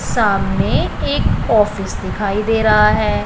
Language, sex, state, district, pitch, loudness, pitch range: Hindi, female, Punjab, Pathankot, 210 Hz, -16 LUFS, 200-215 Hz